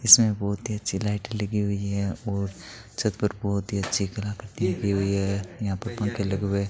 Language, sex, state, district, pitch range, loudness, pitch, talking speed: Hindi, male, Rajasthan, Bikaner, 100-105 Hz, -26 LUFS, 100 Hz, 225 wpm